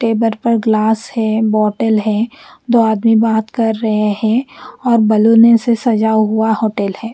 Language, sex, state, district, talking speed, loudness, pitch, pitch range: Hindi, female, Bihar, Patna, 160 wpm, -14 LUFS, 220 Hz, 215-230 Hz